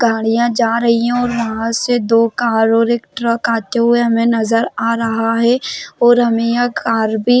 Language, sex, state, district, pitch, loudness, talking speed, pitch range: Hindi, female, Maharashtra, Chandrapur, 230 Hz, -15 LUFS, 195 wpm, 230-240 Hz